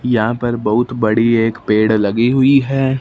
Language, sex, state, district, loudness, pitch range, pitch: Hindi, male, Punjab, Fazilka, -14 LUFS, 110-125 Hz, 120 Hz